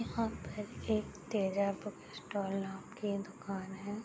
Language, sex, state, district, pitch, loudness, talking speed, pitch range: Hindi, female, Bihar, Gopalganj, 200 Hz, -38 LUFS, 150 wpm, 195-210 Hz